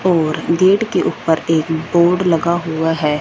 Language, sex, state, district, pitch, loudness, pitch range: Hindi, female, Punjab, Fazilka, 165 Hz, -16 LUFS, 160-175 Hz